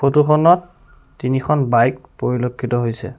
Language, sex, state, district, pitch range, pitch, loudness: Assamese, male, Assam, Sonitpur, 125-150 Hz, 130 Hz, -17 LUFS